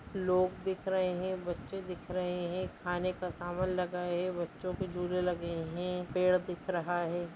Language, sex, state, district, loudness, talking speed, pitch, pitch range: Hindi, female, Bihar, Darbhanga, -34 LUFS, 180 wpm, 180 Hz, 175-185 Hz